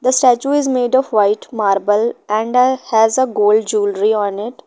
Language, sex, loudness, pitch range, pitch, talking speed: English, female, -15 LUFS, 210-255 Hz, 220 Hz, 195 wpm